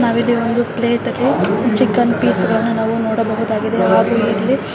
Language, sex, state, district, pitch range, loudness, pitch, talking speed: Kannada, female, Karnataka, Chamarajanagar, 225-240 Hz, -16 LUFS, 230 Hz, 150 wpm